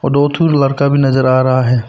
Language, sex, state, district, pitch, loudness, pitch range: Hindi, male, Arunachal Pradesh, Papum Pare, 140 Hz, -12 LUFS, 130-140 Hz